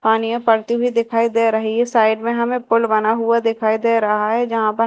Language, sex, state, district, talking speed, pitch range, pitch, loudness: Hindi, female, Madhya Pradesh, Dhar, 245 wpm, 220-235 Hz, 230 Hz, -17 LUFS